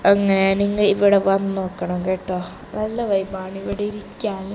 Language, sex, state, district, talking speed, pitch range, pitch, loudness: Malayalam, female, Kerala, Kasaragod, 120 wpm, 190-205 Hz, 195 Hz, -20 LUFS